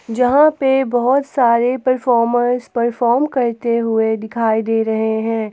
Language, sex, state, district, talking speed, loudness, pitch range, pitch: Hindi, female, Jharkhand, Garhwa, 130 wpm, -16 LUFS, 225-255 Hz, 240 Hz